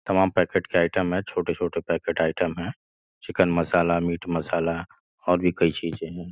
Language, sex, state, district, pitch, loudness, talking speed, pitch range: Hindi, male, Uttar Pradesh, Gorakhpur, 85 Hz, -25 LUFS, 170 wpm, 85-90 Hz